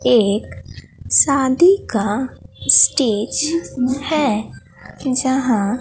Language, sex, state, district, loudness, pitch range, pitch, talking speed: Hindi, female, Bihar, Katihar, -16 LUFS, 220-280 Hz, 260 Hz, 60 wpm